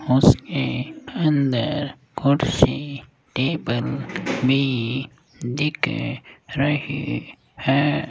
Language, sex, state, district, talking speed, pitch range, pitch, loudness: Hindi, male, Rajasthan, Jaipur, 60 wpm, 130-150 Hz, 140 Hz, -22 LUFS